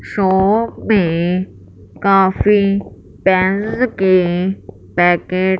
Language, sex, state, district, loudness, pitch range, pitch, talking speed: Hindi, female, Punjab, Fazilka, -15 LUFS, 175-200 Hz, 190 Hz, 75 wpm